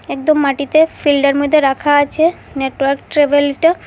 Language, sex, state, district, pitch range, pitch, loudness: Bengali, female, Assam, Hailakandi, 280-310 Hz, 285 Hz, -14 LUFS